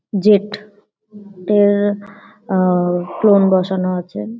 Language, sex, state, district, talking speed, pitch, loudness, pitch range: Bengali, female, West Bengal, Paschim Medinipur, 95 wpm, 200 Hz, -16 LUFS, 180-205 Hz